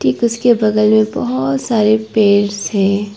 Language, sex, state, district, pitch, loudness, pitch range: Hindi, female, Arunachal Pradesh, Papum Pare, 210 Hz, -14 LUFS, 200-220 Hz